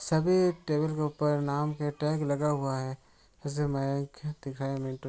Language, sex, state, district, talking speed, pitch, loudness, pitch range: Hindi, male, Bihar, Araria, 120 wpm, 145 Hz, -30 LUFS, 135-150 Hz